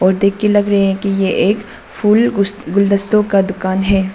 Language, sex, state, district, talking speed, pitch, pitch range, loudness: Hindi, female, Arunachal Pradesh, Papum Pare, 215 wpm, 200 Hz, 195-210 Hz, -14 LUFS